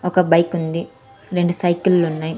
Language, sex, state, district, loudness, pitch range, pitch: Telugu, female, Andhra Pradesh, Sri Satya Sai, -18 LUFS, 160-175 Hz, 170 Hz